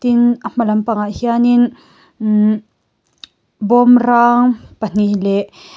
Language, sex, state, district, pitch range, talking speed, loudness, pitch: Mizo, female, Mizoram, Aizawl, 215-240 Hz, 115 wpm, -14 LUFS, 235 Hz